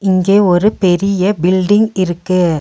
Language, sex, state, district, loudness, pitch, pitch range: Tamil, female, Tamil Nadu, Nilgiris, -13 LUFS, 185 Hz, 180-200 Hz